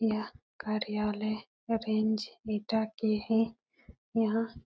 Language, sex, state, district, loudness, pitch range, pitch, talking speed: Hindi, female, Uttar Pradesh, Etah, -32 LUFS, 215-225 Hz, 220 Hz, 105 wpm